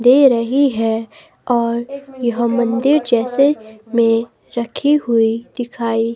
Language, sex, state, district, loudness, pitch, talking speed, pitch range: Hindi, female, Himachal Pradesh, Shimla, -17 LUFS, 240 Hz, 115 wpm, 230-270 Hz